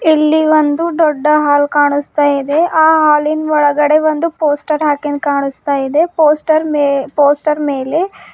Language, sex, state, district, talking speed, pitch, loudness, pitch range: Kannada, female, Karnataka, Bidar, 130 wpm, 300 Hz, -13 LUFS, 290-310 Hz